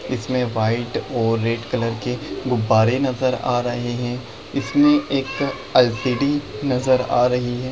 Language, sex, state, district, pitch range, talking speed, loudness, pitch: Hindi, male, Bihar, Jamui, 120-130 Hz, 140 wpm, -20 LUFS, 125 Hz